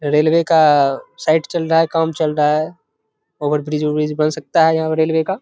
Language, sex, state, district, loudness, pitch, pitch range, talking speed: Hindi, male, Bihar, Begusarai, -16 LUFS, 155 Hz, 150-160 Hz, 210 wpm